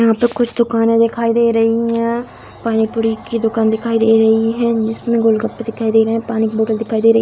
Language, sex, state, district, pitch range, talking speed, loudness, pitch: Hindi, female, Bihar, Samastipur, 225-230 Hz, 230 wpm, -15 LUFS, 225 Hz